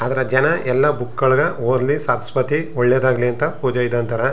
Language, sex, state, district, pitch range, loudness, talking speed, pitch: Kannada, male, Karnataka, Chamarajanagar, 125-135 Hz, -18 LUFS, 165 wpm, 130 Hz